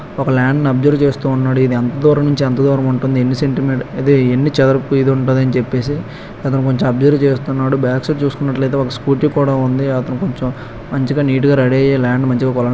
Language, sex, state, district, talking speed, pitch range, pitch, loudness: Telugu, male, Andhra Pradesh, Krishna, 170 wpm, 130-140 Hz, 135 Hz, -15 LUFS